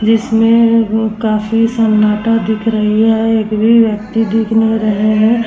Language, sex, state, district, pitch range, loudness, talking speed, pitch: Hindi, female, Bihar, Vaishali, 215-225 Hz, -12 LUFS, 155 wpm, 220 Hz